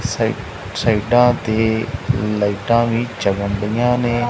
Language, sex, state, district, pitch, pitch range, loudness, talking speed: Punjabi, male, Punjab, Kapurthala, 115 Hz, 105-120 Hz, -18 LUFS, 110 wpm